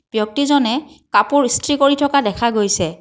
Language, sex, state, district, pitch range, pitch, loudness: Assamese, female, Assam, Kamrup Metropolitan, 210-285 Hz, 275 Hz, -16 LUFS